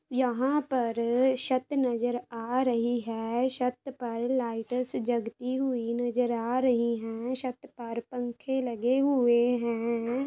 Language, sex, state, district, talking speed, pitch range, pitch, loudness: Hindi, female, Bihar, Araria, 130 wpm, 235-255 Hz, 245 Hz, -29 LUFS